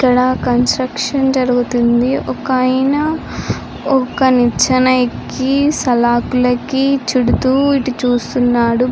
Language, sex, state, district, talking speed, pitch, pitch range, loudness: Telugu, female, Andhra Pradesh, Srikakulam, 85 wpm, 255 Hz, 245-270 Hz, -14 LUFS